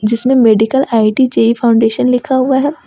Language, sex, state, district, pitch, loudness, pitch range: Hindi, female, Jharkhand, Ranchi, 250 Hz, -11 LUFS, 225-265 Hz